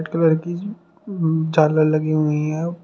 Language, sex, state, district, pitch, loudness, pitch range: Hindi, male, Uttar Pradesh, Shamli, 160 Hz, -19 LUFS, 155-170 Hz